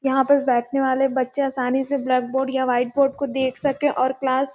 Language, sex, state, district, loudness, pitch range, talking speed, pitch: Hindi, female, Chhattisgarh, Sarguja, -21 LUFS, 255-275 Hz, 235 wpm, 265 Hz